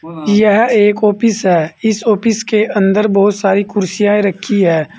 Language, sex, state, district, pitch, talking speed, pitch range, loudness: Hindi, male, Uttar Pradesh, Saharanpur, 205 Hz, 155 wpm, 195-215 Hz, -13 LUFS